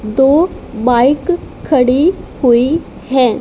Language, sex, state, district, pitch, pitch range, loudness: Hindi, female, Haryana, Charkhi Dadri, 265 Hz, 245-310 Hz, -13 LUFS